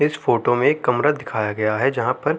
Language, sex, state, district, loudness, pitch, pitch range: Hindi, male, Uttar Pradesh, Jalaun, -20 LUFS, 125 Hz, 110-145 Hz